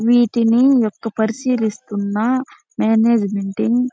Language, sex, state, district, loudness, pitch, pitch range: Telugu, female, Andhra Pradesh, Chittoor, -17 LUFS, 230 Hz, 220-245 Hz